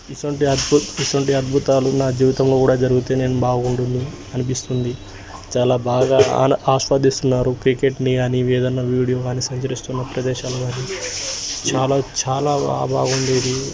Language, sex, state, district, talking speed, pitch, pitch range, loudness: Telugu, male, Telangana, Nalgonda, 75 wpm, 130 Hz, 125-135 Hz, -19 LUFS